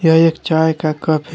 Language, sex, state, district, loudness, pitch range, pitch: Hindi, male, Jharkhand, Deoghar, -15 LUFS, 155-160 Hz, 160 Hz